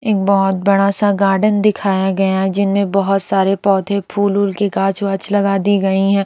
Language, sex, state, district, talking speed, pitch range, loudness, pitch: Hindi, female, Bihar, Katihar, 190 wpm, 195-200 Hz, -15 LUFS, 195 Hz